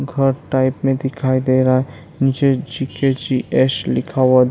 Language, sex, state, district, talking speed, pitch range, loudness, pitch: Hindi, male, Bihar, Saran, 160 wpm, 130-135 Hz, -17 LUFS, 130 Hz